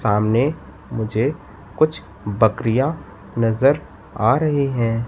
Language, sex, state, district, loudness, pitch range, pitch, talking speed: Hindi, male, Madhya Pradesh, Katni, -20 LUFS, 110-140 Hz, 115 Hz, 95 wpm